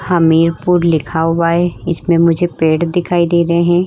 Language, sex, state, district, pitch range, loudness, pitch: Hindi, female, Uttar Pradesh, Hamirpur, 165-175 Hz, -13 LUFS, 170 Hz